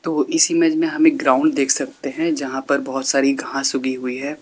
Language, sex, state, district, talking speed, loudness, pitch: Hindi, male, Uttar Pradesh, Lalitpur, 245 wpm, -19 LUFS, 140 Hz